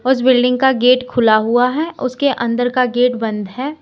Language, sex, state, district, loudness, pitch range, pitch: Hindi, female, Uttar Pradesh, Lalitpur, -15 LUFS, 240-260 Hz, 250 Hz